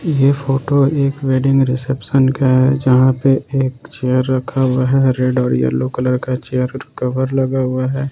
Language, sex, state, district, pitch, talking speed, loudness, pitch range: Hindi, male, Jharkhand, Ranchi, 130 Hz, 175 wpm, -16 LUFS, 130-135 Hz